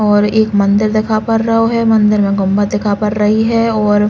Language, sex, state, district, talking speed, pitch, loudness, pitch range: Bundeli, female, Uttar Pradesh, Hamirpur, 235 wpm, 210 Hz, -13 LUFS, 205-220 Hz